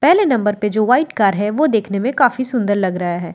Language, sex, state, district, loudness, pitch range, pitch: Hindi, female, Delhi, New Delhi, -16 LUFS, 200-255 Hz, 215 Hz